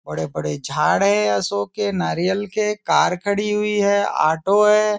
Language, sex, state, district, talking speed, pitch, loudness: Hindi, male, Maharashtra, Nagpur, 180 wpm, 200 Hz, -19 LUFS